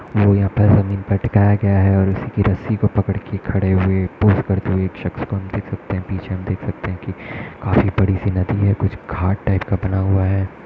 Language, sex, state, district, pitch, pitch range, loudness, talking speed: Hindi, male, Bihar, Gaya, 100 Hz, 95-105 Hz, -18 LUFS, 245 wpm